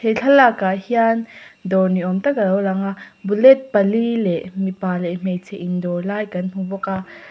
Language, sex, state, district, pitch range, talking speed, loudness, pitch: Mizo, female, Mizoram, Aizawl, 185-220 Hz, 195 wpm, -18 LUFS, 195 Hz